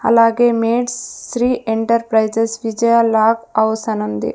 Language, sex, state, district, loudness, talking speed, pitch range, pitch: Telugu, female, Andhra Pradesh, Sri Satya Sai, -16 LUFS, 110 wpm, 220-235 Hz, 230 Hz